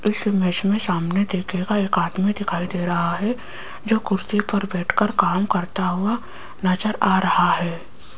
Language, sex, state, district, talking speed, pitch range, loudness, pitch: Hindi, female, Rajasthan, Jaipur, 155 wpm, 180-210 Hz, -21 LUFS, 190 Hz